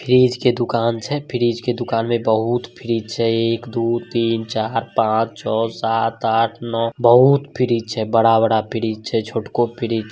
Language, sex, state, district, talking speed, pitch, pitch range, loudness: Maithili, male, Bihar, Samastipur, 180 wpm, 115 Hz, 115-120 Hz, -19 LUFS